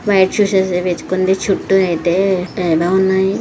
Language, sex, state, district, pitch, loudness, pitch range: Telugu, female, Andhra Pradesh, Krishna, 190 Hz, -15 LUFS, 180-195 Hz